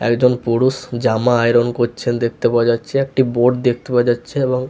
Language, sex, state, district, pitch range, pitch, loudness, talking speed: Bengali, male, West Bengal, Paschim Medinipur, 120-125 Hz, 120 Hz, -17 LUFS, 180 wpm